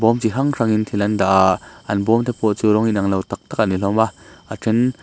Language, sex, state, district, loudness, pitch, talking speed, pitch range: Mizo, male, Mizoram, Aizawl, -18 LUFS, 110 Hz, 285 wpm, 100-115 Hz